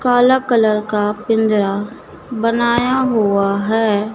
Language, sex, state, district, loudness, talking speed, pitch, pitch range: Hindi, female, Madhya Pradesh, Dhar, -16 LUFS, 100 wpm, 220 Hz, 210-235 Hz